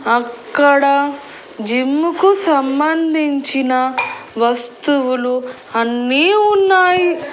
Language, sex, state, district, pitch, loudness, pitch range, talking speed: Telugu, female, Andhra Pradesh, Annamaya, 280 Hz, -15 LUFS, 255-325 Hz, 50 wpm